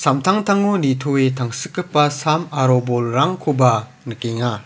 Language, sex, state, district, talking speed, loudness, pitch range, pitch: Garo, male, Meghalaya, South Garo Hills, 75 wpm, -18 LUFS, 125-160 Hz, 135 Hz